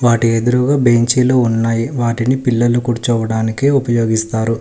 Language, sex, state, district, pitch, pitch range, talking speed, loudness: Telugu, male, Telangana, Hyderabad, 120 Hz, 115-125 Hz, 115 wpm, -14 LUFS